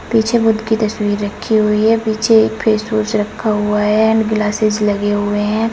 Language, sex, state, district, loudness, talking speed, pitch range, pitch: Hindi, female, Uttar Pradesh, Saharanpur, -15 LUFS, 190 wpm, 210-220 Hz, 215 Hz